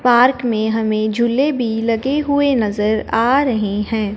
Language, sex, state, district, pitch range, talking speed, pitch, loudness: Hindi, male, Punjab, Fazilka, 215-255 Hz, 160 wpm, 230 Hz, -17 LUFS